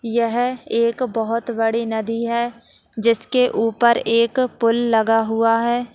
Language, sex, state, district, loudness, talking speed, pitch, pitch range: Hindi, female, Uttarakhand, Tehri Garhwal, -18 LUFS, 170 wpm, 230 Hz, 225-240 Hz